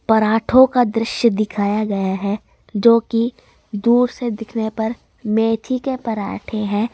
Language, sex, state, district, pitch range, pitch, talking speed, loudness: Hindi, female, Rajasthan, Jaipur, 215-235 Hz, 225 Hz, 130 wpm, -18 LUFS